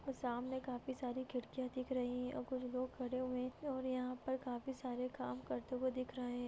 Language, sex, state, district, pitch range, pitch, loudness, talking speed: Hindi, female, Bihar, Muzaffarpur, 250-260 Hz, 255 Hz, -43 LUFS, 210 wpm